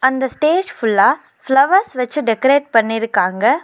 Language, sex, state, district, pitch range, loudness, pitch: Tamil, female, Tamil Nadu, Nilgiris, 225-285 Hz, -15 LUFS, 265 Hz